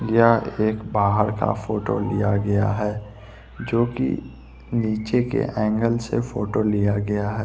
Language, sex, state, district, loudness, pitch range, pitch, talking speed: Hindi, male, Bihar, West Champaran, -22 LUFS, 100-115 Hz, 105 Hz, 145 wpm